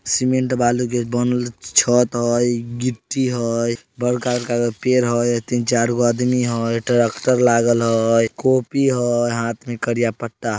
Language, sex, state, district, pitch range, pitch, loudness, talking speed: Maithili, male, Bihar, Samastipur, 115-125 Hz, 120 Hz, -19 LUFS, 145 wpm